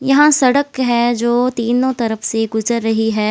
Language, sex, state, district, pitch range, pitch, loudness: Hindi, female, Haryana, Jhajjar, 225-255 Hz, 235 Hz, -15 LUFS